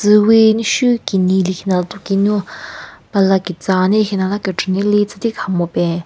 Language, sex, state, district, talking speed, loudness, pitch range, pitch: Rengma, female, Nagaland, Kohima, 150 wpm, -15 LUFS, 185-210 Hz, 195 Hz